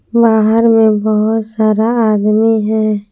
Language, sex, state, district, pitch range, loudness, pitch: Hindi, female, Jharkhand, Palamu, 215-225 Hz, -12 LUFS, 220 Hz